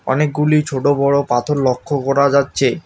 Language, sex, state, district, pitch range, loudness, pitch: Bengali, male, West Bengal, Alipurduar, 135-145 Hz, -16 LUFS, 140 Hz